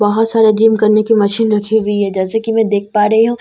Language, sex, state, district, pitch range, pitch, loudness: Hindi, female, Bihar, Katihar, 210-225 Hz, 215 Hz, -13 LUFS